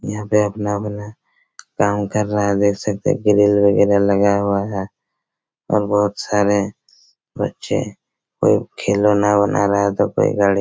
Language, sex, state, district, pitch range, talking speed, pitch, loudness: Hindi, male, Chhattisgarh, Raigarh, 100-105 Hz, 150 wpm, 100 Hz, -18 LUFS